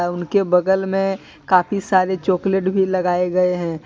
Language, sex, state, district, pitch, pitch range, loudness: Hindi, male, Jharkhand, Deoghar, 185 Hz, 180-190 Hz, -18 LUFS